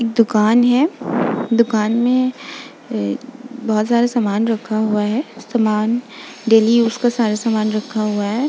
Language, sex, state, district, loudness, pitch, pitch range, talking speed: Hindi, female, Uttar Pradesh, Jalaun, -17 LUFS, 230 Hz, 215-245 Hz, 150 wpm